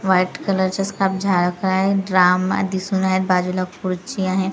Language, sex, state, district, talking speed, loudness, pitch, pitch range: Marathi, female, Maharashtra, Gondia, 145 wpm, -19 LUFS, 190 Hz, 185-195 Hz